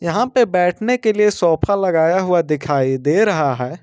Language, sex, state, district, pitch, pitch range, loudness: Hindi, male, Jharkhand, Ranchi, 175 Hz, 150-210 Hz, -16 LUFS